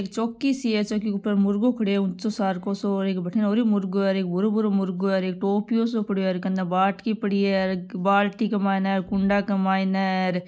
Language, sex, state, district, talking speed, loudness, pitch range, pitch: Marwari, female, Rajasthan, Nagaur, 240 wpm, -24 LUFS, 190-210 Hz, 200 Hz